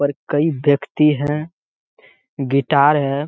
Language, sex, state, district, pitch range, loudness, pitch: Hindi, male, Bihar, Jamui, 140-155 Hz, -17 LUFS, 145 Hz